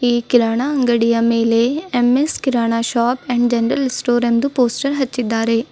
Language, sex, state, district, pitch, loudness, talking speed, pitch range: Kannada, female, Karnataka, Bidar, 240 Hz, -17 LUFS, 135 wpm, 230-255 Hz